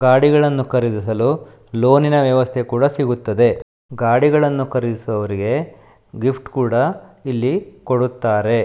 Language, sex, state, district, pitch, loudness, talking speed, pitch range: Kannada, male, Karnataka, Shimoga, 125 Hz, -17 LUFS, 85 wpm, 115-140 Hz